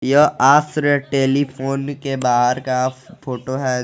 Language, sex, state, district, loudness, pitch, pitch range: Hindi, male, Jharkhand, Garhwa, -18 LUFS, 135 Hz, 130-145 Hz